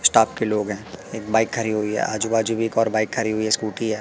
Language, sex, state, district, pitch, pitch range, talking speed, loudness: Hindi, male, Madhya Pradesh, Katni, 110 Hz, 105-115 Hz, 300 wpm, -22 LUFS